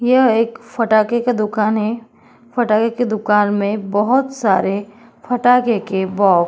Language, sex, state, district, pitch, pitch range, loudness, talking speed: Hindi, female, Uttar Pradesh, Jyotiba Phule Nagar, 220 Hz, 205-240 Hz, -17 LUFS, 150 wpm